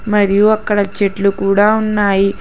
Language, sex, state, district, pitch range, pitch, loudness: Telugu, female, Telangana, Hyderabad, 200-210 Hz, 205 Hz, -14 LUFS